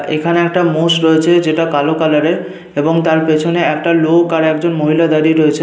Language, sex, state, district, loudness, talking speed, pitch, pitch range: Bengali, male, Jharkhand, Sahebganj, -13 LUFS, 190 wpm, 160 Hz, 155-170 Hz